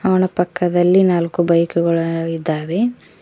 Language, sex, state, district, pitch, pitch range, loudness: Kannada, female, Karnataka, Koppal, 175 Hz, 170-180 Hz, -17 LUFS